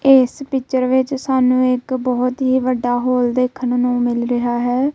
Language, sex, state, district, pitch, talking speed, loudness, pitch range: Punjabi, female, Punjab, Kapurthala, 255 Hz, 170 wpm, -17 LUFS, 245-260 Hz